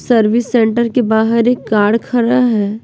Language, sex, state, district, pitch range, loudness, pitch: Hindi, female, Bihar, West Champaran, 220-240 Hz, -13 LUFS, 230 Hz